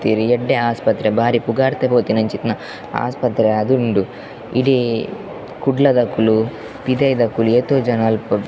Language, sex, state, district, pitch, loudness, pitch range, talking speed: Tulu, male, Karnataka, Dakshina Kannada, 120 Hz, -17 LUFS, 110-130 Hz, 115 wpm